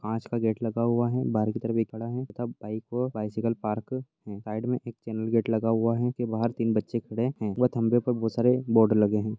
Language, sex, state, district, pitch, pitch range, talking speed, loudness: Hindi, male, Jharkhand, Jamtara, 115 Hz, 110-120 Hz, 230 wpm, -27 LUFS